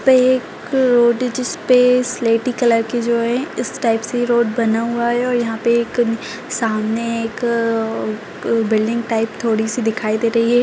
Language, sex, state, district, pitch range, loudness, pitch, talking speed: Kumaoni, female, Uttarakhand, Tehri Garhwal, 225-245 Hz, -18 LUFS, 235 Hz, 170 wpm